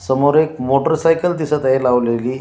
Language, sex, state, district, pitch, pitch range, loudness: Marathi, male, Maharashtra, Washim, 135 Hz, 125-155 Hz, -16 LUFS